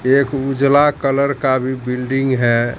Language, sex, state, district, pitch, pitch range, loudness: Hindi, male, Bihar, Katihar, 135 Hz, 130-140 Hz, -16 LUFS